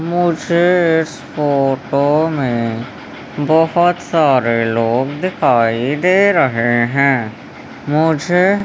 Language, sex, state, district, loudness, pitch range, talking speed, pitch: Hindi, male, Madhya Pradesh, Umaria, -15 LUFS, 125-170 Hz, 90 wpm, 145 Hz